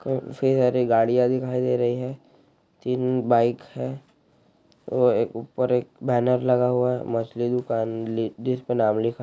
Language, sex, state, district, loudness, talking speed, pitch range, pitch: Hindi, male, Chhattisgarh, Raigarh, -23 LUFS, 160 wpm, 115-125 Hz, 125 Hz